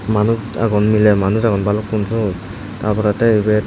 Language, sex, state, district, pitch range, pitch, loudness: Chakma, male, Tripura, Dhalai, 105-110 Hz, 105 Hz, -16 LUFS